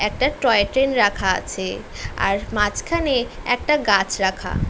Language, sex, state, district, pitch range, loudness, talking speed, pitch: Bengali, female, West Bengal, North 24 Parganas, 200-270 Hz, -20 LUFS, 115 wpm, 235 Hz